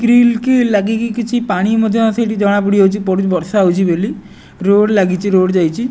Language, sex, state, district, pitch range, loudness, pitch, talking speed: Odia, male, Odisha, Nuapada, 190-230 Hz, -14 LUFS, 205 Hz, 140 wpm